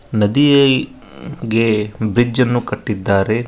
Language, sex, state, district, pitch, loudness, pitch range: Kannada, male, Karnataka, Koppal, 115 Hz, -15 LUFS, 105-135 Hz